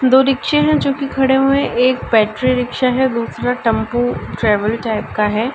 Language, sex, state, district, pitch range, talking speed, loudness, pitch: Hindi, female, Uttar Pradesh, Ghazipur, 225-265 Hz, 195 wpm, -16 LUFS, 250 Hz